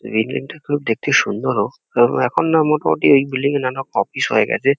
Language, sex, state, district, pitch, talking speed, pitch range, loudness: Bengali, male, West Bengal, Kolkata, 135 Hz, 200 wpm, 130-145 Hz, -17 LUFS